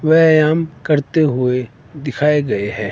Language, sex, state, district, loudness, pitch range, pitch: Hindi, male, Himachal Pradesh, Shimla, -16 LUFS, 125-155 Hz, 150 Hz